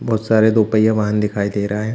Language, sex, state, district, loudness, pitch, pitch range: Hindi, male, Chhattisgarh, Bilaspur, -16 LUFS, 110 Hz, 105-110 Hz